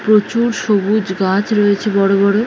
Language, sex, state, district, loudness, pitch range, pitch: Bengali, female, West Bengal, Jhargram, -15 LUFS, 195-215 Hz, 205 Hz